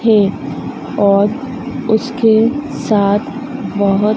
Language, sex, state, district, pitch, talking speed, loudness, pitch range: Hindi, female, Madhya Pradesh, Dhar, 220 Hz, 70 wpm, -15 LUFS, 205-260 Hz